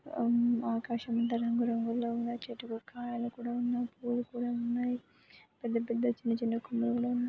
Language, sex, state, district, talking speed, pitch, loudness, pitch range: Telugu, female, Andhra Pradesh, Anantapur, 150 wpm, 235 Hz, -33 LUFS, 235-240 Hz